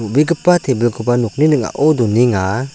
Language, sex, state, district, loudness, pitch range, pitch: Garo, male, Meghalaya, South Garo Hills, -15 LUFS, 115-150 Hz, 125 Hz